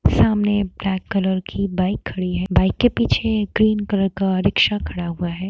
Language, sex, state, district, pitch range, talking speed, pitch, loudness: Hindi, female, Bihar, Darbhanga, 185-210 Hz, 185 wpm, 195 Hz, -20 LUFS